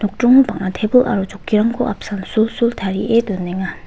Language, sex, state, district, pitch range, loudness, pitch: Garo, female, Meghalaya, West Garo Hills, 190-235 Hz, -17 LUFS, 210 Hz